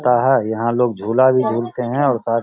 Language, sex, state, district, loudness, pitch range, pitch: Hindi, male, Bihar, Darbhanga, -17 LUFS, 115-130 Hz, 120 Hz